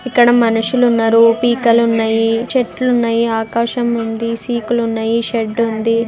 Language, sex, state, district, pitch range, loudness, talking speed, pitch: Telugu, female, Telangana, Karimnagar, 225-240 Hz, -14 LUFS, 90 wpm, 230 Hz